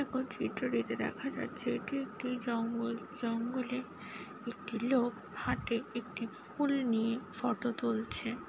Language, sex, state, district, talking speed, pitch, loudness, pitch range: Bengali, female, West Bengal, Paschim Medinipur, 115 wpm, 235 Hz, -36 LUFS, 225-250 Hz